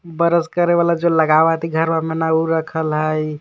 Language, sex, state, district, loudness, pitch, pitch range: Magahi, male, Jharkhand, Palamu, -17 LUFS, 160 Hz, 160-170 Hz